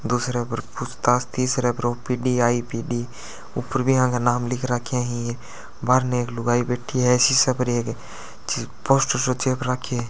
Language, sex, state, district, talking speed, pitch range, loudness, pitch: Hindi, male, Rajasthan, Churu, 155 wpm, 120-130 Hz, -22 LUFS, 125 Hz